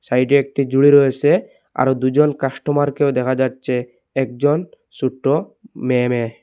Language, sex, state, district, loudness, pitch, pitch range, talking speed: Bengali, male, Assam, Hailakandi, -18 LUFS, 135 Hz, 130-145 Hz, 120 wpm